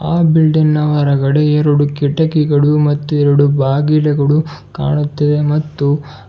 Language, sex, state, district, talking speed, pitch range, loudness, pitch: Kannada, male, Karnataka, Bidar, 115 wpm, 145-150 Hz, -13 LUFS, 150 Hz